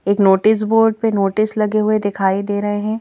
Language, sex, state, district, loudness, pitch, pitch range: Hindi, female, Madhya Pradesh, Bhopal, -16 LUFS, 210 Hz, 200-215 Hz